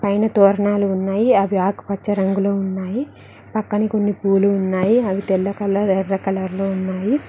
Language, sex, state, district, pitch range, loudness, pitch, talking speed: Telugu, female, Telangana, Mahabubabad, 195-205 Hz, -19 LUFS, 200 Hz, 150 wpm